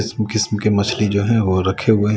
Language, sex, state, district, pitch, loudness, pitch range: Hindi, male, Bihar, West Champaran, 105 Hz, -18 LUFS, 100-110 Hz